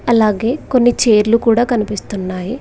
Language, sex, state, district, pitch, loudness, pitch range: Telugu, female, Telangana, Mahabubabad, 230 Hz, -15 LUFS, 210-240 Hz